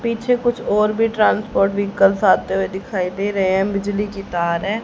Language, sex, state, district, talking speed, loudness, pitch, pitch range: Hindi, female, Haryana, Rohtak, 200 wpm, -18 LUFS, 200 Hz, 195-215 Hz